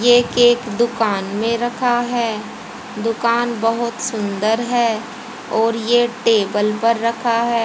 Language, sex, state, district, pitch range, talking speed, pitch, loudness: Hindi, female, Haryana, Jhajjar, 225-240 Hz, 125 wpm, 230 Hz, -18 LUFS